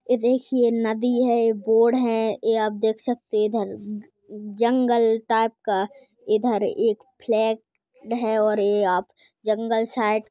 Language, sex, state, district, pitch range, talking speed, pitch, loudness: Hindi, female, Maharashtra, Pune, 215-240 Hz, 145 wpm, 225 Hz, -22 LUFS